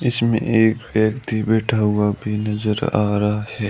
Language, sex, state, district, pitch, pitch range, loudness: Hindi, male, Rajasthan, Bikaner, 110 Hz, 105-115 Hz, -19 LUFS